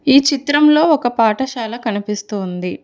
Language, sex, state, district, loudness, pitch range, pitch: Telugu, female, Telangana, Hyderabad, -16 LUFS, 210-285 Hz, 240 Hz